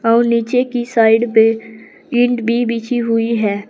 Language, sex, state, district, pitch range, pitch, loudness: Hindi, female, Uttar Pradesh, Saharanpur, 225-240 Hz, 230 Hz, -15 LUFS